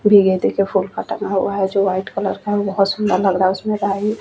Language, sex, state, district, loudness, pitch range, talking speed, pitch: Hindi, female, Chhattisgarh, Bastar, -18 LUFS, 190-205 Hz, 255 wpm, 195 Hz